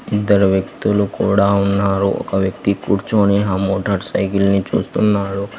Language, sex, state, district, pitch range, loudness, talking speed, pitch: Telugu, male, Telangana, Hyderabad, 95-100 Hz, -17 LUFS, 130 wpm, 100 Hz